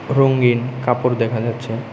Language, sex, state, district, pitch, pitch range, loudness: Bengali, male, Tripura, West Tripura, 120 Hz, 115-130 Hz, -18 LUFS